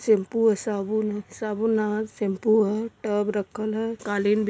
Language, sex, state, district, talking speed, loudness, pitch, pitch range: Hindi, female, Uttar Pradesh, Varanasi, 200 wpm, -25 LUFS, 215 Hz, 205-220 Hz